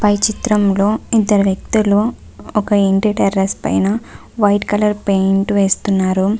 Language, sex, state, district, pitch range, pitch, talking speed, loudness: Telugu, female, Andhra Pradesh, Visakhapatnam, 195-210 Hz, 205 Hz, 115 wpm, -15 LUFS